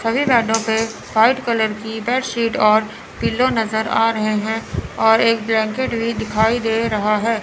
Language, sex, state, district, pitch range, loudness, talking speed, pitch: Hindi, male, Chandigarh, Chandigarh, 220-230 Hz, -18 LUFS, 180 wpm, 225 Hz